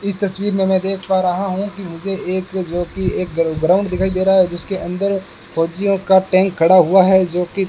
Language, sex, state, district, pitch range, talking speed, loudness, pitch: Hindi, male, Rajasthan, Bikaner, 180-195 Hz, 220 wpm, -17 LUFS, 190 Hz